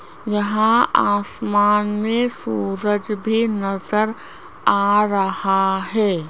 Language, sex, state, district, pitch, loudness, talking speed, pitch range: Hindi, female, Rajasthan, Jaipur, 210 Hz, -19 LUFS, 85 wpm, 195-220 Hz